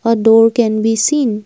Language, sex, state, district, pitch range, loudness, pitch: English, female, Assam, Kamrup Metropolitan, 220-235 Hz, -12 LUFS, 225 Hz